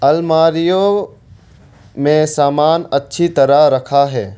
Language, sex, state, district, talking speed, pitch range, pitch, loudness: Hindi, male, Arunachal Pradesh, Longding, 95 wpm, 130-165 Hz, 145 Hz, -13 LUFS